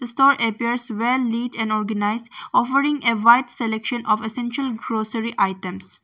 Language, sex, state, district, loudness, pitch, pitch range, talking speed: English, female, Arunachal Pradesh, Longding, -21 LUFS, 235 Hz, 220-245 Hz, 150 wpm